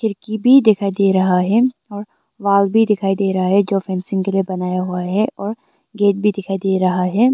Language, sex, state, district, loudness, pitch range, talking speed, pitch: Hindi, female, Arunachal Pradesh, Longding, -17 LUFS, 190-215 Hz, 230 wpm, 200 Hz